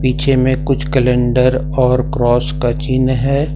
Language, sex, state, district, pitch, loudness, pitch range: Hindi, male, Jharkhand, Ranchi, 130 Hz, -15 LUFS, 125-140 Hz